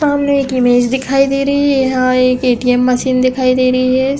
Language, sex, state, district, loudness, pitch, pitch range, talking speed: Hindi, female, Uttar Pradesh, Hamirpur, -13 LUFS, 255 Hz, 255-275 Hz, 245 wpm